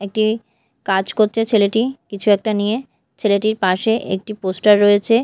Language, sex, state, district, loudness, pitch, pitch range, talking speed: Bengali, female, Odisha, Malkangiri, -17 LUFS, 210 Hz, 200-220 Hz, 135 wpm